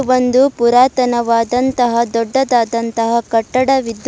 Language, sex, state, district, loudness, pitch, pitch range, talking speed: Kannada, female, Karnataka, Bidar, -14 LUFS, 240 Hz, 230-255 Hz, 90 wpm